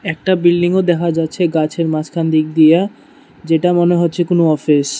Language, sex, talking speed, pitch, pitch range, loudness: Bengali, male, 180 wpm, 165 Hz, 160-175 Hz, -14 LUFS